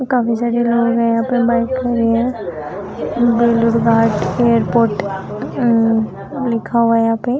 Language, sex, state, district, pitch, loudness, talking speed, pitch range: Hindi, female, Jharkhand, Sahebganj, 235 Hz, -16 LUFS, 120 wpm, 230-240 Hz